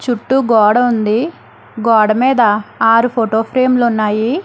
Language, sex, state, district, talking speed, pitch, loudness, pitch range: Telugu, female, Telangana, Hyderabad, 135 wpm, 230 Hz, -13 LUFS, 220-250 Hz